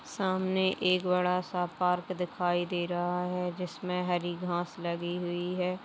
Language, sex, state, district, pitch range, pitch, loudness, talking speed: Hindi, female, Uttar Pradesh, Jalaun, 175-180 Hz, 180 Hz, -31 LUFS, 175 wpm